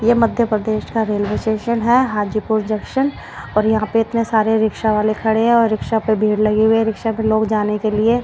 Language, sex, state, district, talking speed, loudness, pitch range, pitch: Hindi, female, Odisha, Malkangiri, 225 wpm, -17 LUFS, 215-225 Hz, 220 Hz